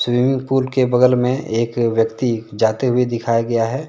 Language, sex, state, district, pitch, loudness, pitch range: Hindi, male, Jharkhand, Deoghar, 120 Hz, -18 LUFS, 115-130 Hz